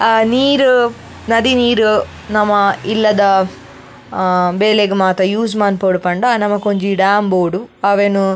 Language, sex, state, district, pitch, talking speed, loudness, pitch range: Tulu, female, Karnataka, Dakshina Kannada, 205 Hz, 115 wpm, -14 LUFS, 190-225 Hz